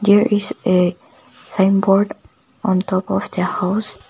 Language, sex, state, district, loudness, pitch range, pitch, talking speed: English, female, Nagaland, Kohima, -18 LUFS, 185-210 Hz, 195 Hz, 145 wpm